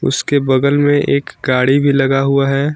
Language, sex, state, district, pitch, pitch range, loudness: Hindi, male, Jharkhand, Garhwa, 140 Hz, 135-145 Hz, -14 LUFS